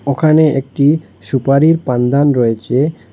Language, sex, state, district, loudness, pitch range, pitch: Bengali, male, Assam, Hailakandi, -13 LUFS, 130-155 Hz, 140 Hz